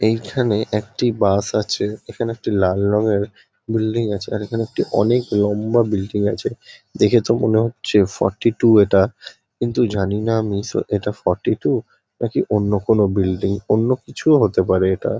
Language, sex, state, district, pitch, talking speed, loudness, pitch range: Bengali, male, West Bengal, Kolkata, 105 Hz, 160 wpm, -19 LUFS, 100-115 Hz